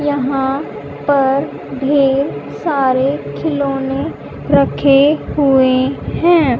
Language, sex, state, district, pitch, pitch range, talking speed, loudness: Hindi, male, Haryana, Charkhi Dadri, 275 Hz, 265-285 Hz, 75 wpm, -15 LUFS